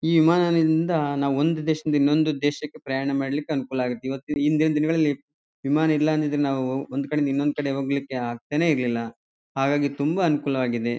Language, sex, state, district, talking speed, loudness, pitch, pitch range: Kannada, male, Karnataka, Chamarajanagar, 155 wpm, -23 LUFS, 145 Hz, 135-155 Hz